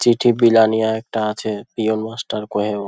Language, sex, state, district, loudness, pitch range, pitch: Bengali, male, West Bengal, Dakshin Dinajpur, -18 LUFS, 105-115 Hz, 110 Hz